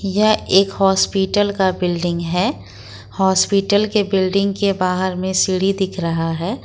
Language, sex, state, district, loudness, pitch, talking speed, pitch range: Hindi, female, Jharkhand, Ranchi, -17 LUFS, 190 Hz, 145 wpm, 180-200 Hz